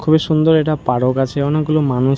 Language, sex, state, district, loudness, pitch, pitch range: Bengali, male, West Bengal, Jhargram, -16 LUFS, 150 Hz, 135-155 Hz